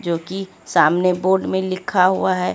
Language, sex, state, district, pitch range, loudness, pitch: Hindi, female, Chhattisgarh, Raipur, 180-190 Hz, -18 LUFS, 185 Hz